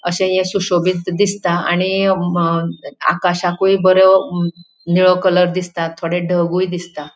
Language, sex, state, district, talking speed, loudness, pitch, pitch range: Konkani, female, Goa, North and South Goa, 125 wpm, -16 LUFS, 180 Hz, 175-185 Hz